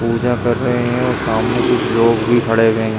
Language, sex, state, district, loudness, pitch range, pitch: Hindi, male, Uttar Pradesh, Hamirpur, -15 LUFS, 115-120 Hz, 115 Hz